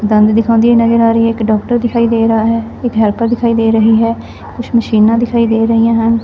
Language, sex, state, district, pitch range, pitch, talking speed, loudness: Punjabi, female, Punjab, Fazilka, 225-235 Hz, 230 Hz, 230 wpm, -11 LUFS